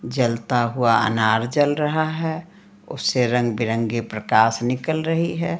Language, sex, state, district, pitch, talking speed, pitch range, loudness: Hindi, female, Bihar, Patna, 125 Hz, 130 wpm, 115-160 Hz, -21 LUFS